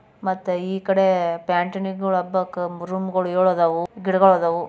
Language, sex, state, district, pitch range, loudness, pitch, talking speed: Kannada, female, Karnataka, Bijapur, 175-190 Hz, -21 LUFS, 185 Hz, 130 wpm